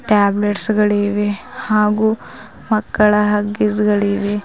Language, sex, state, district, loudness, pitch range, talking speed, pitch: Kannada, female, Karnataka, Bidar, -17 LUFS, 205-215 Hz, 65 wpm, 210 Hz